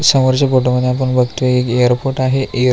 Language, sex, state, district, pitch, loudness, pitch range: Marathi, male, Maharashtra, Aurangabad, 130 Hz, -14 LUFS, 125-130 Hz